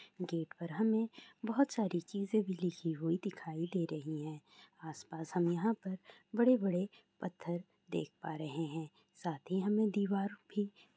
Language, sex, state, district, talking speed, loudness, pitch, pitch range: Maithili, female, Bihar, Sitamarhi, 170 wpm, -37 LUFS, 185 Hz, 165-210 Hz